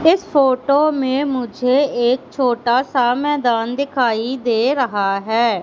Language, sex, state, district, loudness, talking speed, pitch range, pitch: Hindi, female, Madhya Pradesh, Katni, -17 LUFS, 130 wpm, 235-280 Hz, 255 Hz